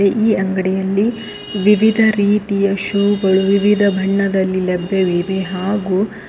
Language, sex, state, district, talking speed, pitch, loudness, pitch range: Kannada, female, Karnataka, Koppal, 85 wpm, 200 Hz, -16 LUFS, 190-205 Hz